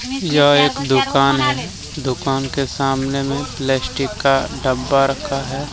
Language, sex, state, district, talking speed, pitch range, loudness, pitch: Hindi, male, Jharkhand, Deoghar, 145 wpm, 135-140 Hz, -18 LUFS, 135 Hz